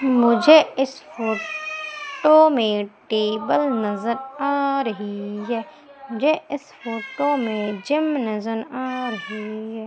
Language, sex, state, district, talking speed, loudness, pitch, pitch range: Hindi, female, Madhya Pradesh, Umaria, 110 wpm, -21 LUFS, 250 Hz, 220-285 Hz